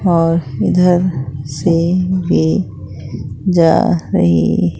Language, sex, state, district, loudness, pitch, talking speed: Hindi, female, Bihar, Katihar, -14 LUFS, 140 Hz, 75 wpm